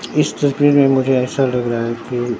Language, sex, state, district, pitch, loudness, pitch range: Hindi, male, Bihar, Katihar, 130 Hz, -16 LUFS, 120-140 Hz